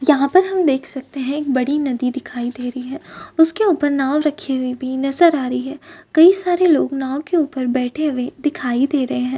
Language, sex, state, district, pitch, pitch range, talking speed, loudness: Hindi, female, Maharashtra, Chandrapur, 275 Hz, 255-315 Hz, 225 wpm, -18 LUFS